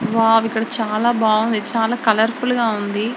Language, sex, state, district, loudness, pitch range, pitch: Telugu, female, Andhra Pradesh, Srikakulam, -18 LUFS, 220-235 Hz, 225 Hz